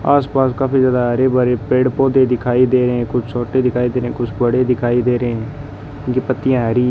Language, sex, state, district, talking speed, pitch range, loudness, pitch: Hindi, male, Rajasthan, Bikaner, 235 wpm, 120-130 Hz, -16 LUFS, 125 Hz